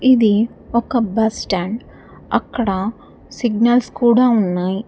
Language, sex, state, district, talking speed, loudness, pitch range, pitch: Telugu, female, Telangana, Hyderabad, 85 wpm, -17 LUFS, 205-240 Hz, 230 Hz